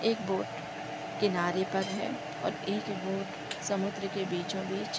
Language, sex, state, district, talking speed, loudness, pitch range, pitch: Hindi, female, Bihar, East Champaran, 145 wpm, -33 LUFS, 180-200 Hz, 190 Hz